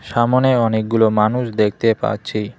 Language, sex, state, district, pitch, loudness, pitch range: Bengali, male, West Bengal, Cooch Behar, 115 Hz, -17 LUFS, 110-120 Hz